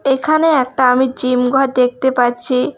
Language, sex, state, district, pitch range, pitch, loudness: Bengali, female, West Bengal, Alipurduar, 250-265 Hz, 255 Hz, -14 LUFS